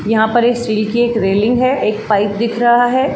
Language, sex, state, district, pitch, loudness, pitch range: Hindi, female, Uttar Pradesh, Jalaun, 230 Hz, -14 LUFS, 215-240 Hz